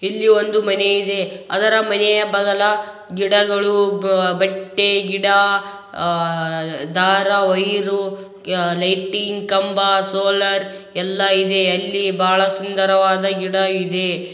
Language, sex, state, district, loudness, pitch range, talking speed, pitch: Kannada, male, Karnataka, Raichur, -16 LUFS, 190-200 Hz, 90 wpm, 195 Hz